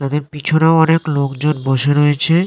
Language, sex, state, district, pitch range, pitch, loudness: Bengali, male, West Bengal, North 24 Parganas, 140-160 Hz, 150 Hz, -15 LUFS